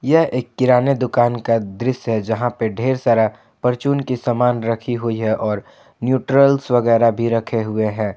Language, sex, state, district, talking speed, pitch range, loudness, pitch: Hindi, male, Jharkhand, Ranchi, 175 wpm, 115-130 Hz, -18 LUFS, 120 Hz